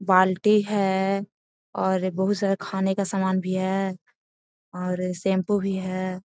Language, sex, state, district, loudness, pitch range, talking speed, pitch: Magahi, female, Bihar, Gaya, -24 LUFS, 185-195 Hz, 135 wpm, 190 Hz